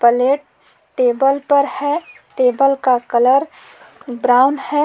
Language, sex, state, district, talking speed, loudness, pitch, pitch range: Hindi, female, Jharkhand, Palamu, 110 wpm, -16 LUFS, 270 Hz, 250-285 Hz